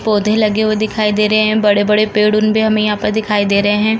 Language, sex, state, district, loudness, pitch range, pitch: Hindi, female, Uttar Pradesh, Varanasi, -13 LUFS, 210-215 Hz, 215 Hz